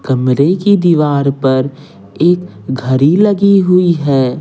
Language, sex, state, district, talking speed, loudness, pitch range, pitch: Hindi, male, Bihar, Patna, 120 wpm, -12 LUFS, 130-180 Hz, 145 Hz